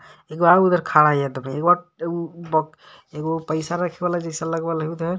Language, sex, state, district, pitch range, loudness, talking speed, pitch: Magahi, male, Jharkhand, Palamu, 155-175 Hz, -21 LUFS, 210 wpm, 165 Hz